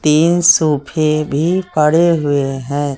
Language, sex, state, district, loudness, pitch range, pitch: Hindi, male, Uttar Pradesh, Lucknow, -14 LUFS, 145-165 Hz, 155 Hz